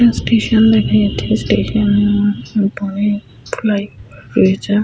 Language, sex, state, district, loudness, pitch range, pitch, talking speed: Bengali, female, West Bengal, Paschim Medinipur, -15 LUFS, 175-210 Hz, 205 Hz, 110 wpm